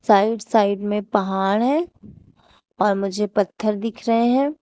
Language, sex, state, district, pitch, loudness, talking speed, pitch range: Hindi, female, Uttar Pradesh, Shamli, 210 Hz, -20 LUFS, 140 wpm, 205-230 Hz